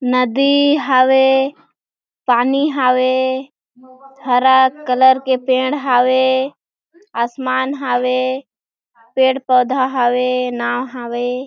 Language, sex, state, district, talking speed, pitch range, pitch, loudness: Chhattisgarhi, female, Chhattisgarh, Jashpur, 85 wpm, 250-265 Hz, 260 Hz, -15 LUFS